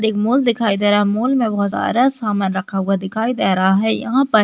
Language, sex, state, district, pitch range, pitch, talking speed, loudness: Hindi, female, Maharashtra, Pune, 195-235 Hz, 215 Hz, 255 wpm, -17 LUFS